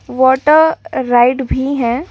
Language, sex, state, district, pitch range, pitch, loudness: Hindi, female, Delhi, New Delhi, 250-305 Hz, 265 Hz, -13 LUFS